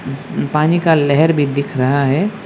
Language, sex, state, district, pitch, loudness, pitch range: Hindi, male, West Bengal, Alipurduar, 145 Hz, -15 LUFS, 140-160 Hz